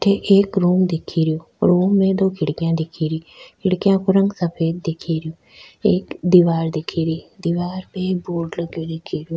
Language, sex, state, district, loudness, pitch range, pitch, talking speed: Rajasthani, female, Rajasthan, Nagaur, -19 LUFS, 165-190 Hz, 170 Hz, 180 wpm